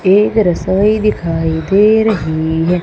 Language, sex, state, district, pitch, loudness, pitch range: Hindi, female, Madhya Pradesh, Umaria, 185 Hz, -13 LUFS, 165-210 Hz